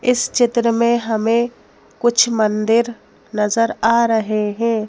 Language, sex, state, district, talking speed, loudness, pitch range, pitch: Hindi, female, Madhya Pradesh, Bhopal, 125 wpm, -17 LUFS, 220-235 Hz, 230 Hz